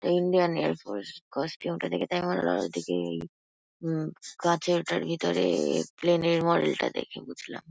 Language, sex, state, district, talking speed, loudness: Bengali, female, West Bengal, Kolkata, 165 wpm, -28 LUFS